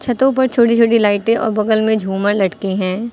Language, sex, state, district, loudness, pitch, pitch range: Hindi, female, Uttar Pradesh, Lucknow, -15 LUFS, 220 Hz, 200-235 Hz